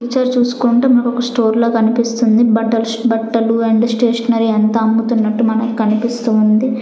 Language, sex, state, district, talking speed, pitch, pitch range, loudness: Telugu, female, Andhra Pradesh, Sri Satya Sai, 125 wpm, 230 Hz, 225-240 Hz, -14 LUFS